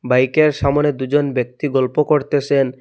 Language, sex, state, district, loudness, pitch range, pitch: Bengali, male, Assam, Hailakandi, -17 LUFS, 130-150 Hz, 140 Hz